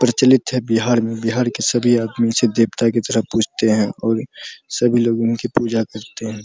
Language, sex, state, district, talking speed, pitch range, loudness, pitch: Hindi, male, Bihar, Araria, 195 wpm, 115-120 Hz, -18 LUFS, 115 Hz